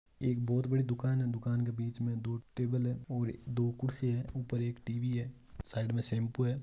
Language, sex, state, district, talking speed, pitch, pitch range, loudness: Marwari, male, Rajasthan, Nagaur, 200 wpm, 120 Hz, 120-125 Hz, -35 LUFS